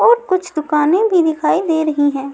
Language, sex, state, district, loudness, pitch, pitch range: Hindi, female, Maharashtra, Mumbai Suburban, -15 LUFS, 320 Hz, 300-370 Hz